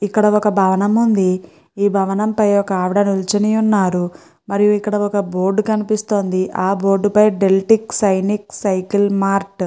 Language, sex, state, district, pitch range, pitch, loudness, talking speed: Telugu, female, Andhra Pradesh, Guntur, 190-210 Hz, 200 Hz, -16 LUFS, 150 wpm